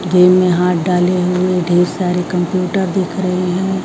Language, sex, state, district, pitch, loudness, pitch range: Hindi, female, Bihar, Kaimur, 180 Hz, -15 LUFS, 180-185 Hz